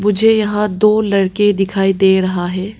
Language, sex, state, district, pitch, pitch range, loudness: Hindi, female, Arunachal Pradesh, Papum Pare, 200 Hz, 190-210 Hz, -14 LUFS